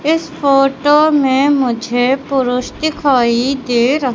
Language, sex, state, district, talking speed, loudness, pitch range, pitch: Hindi, male, Madhya Pradesh, Katni, 115 wpm, -14 LUFS, 250-290 Hz, 275 Hz